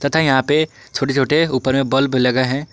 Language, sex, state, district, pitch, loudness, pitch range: Hindi, male, Jharkhand, Garhwa, 135 Hz, -17 LUFS, 130-145 Hz